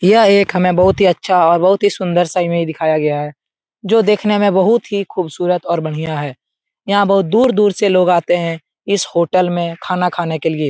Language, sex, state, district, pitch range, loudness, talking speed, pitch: Hindi, male, Bihar, Saran, 170-200 Hz, -14 LUFS, 215 wpm, 180 Hz